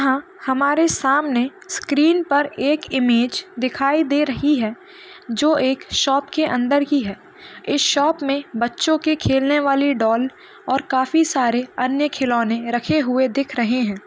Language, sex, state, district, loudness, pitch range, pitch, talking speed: Hindi, female, Maharashtra, Nagpur, -19 LUFS, 255-300 Hz, 275 Hz, 150 wpm